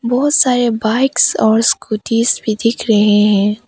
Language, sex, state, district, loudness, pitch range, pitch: Hindi, female, Arunachal Pradesh, Papum Pare, -13 LUFS, 215-245 Hz, 230 Hz